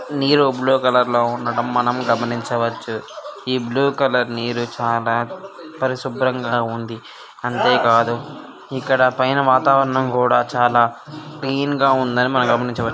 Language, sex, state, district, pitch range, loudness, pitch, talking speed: Telugu, male, Andhra Pradesh, Chittoor, 120-135 Hz, -18 LUFS, 125 Hz, 120 wpm